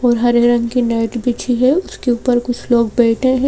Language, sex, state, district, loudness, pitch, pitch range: Hindi, female, Madhya Pradesh, Bhopal, -15 LUFS, 240 Hz, 235-250 Hz